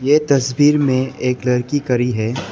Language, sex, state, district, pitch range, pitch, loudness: Hindi, male, Arunachal Pradesh, Lower Dibang Valley, 125-145 Hz, 130 Hz, -17 LUFS